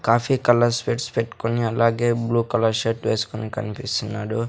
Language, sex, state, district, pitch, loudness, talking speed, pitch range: Telugu, male, Andhra Pradesh, Sri Satya Sai, 115 Hz, -22 LUFS, 135 wpm, 110-120 Hz